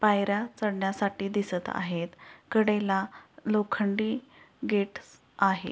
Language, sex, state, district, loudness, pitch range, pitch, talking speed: Marathi, female, Maharashtra, Pune, -29 LUFS, 195-215 Hz, 205 Hz, 85 wpm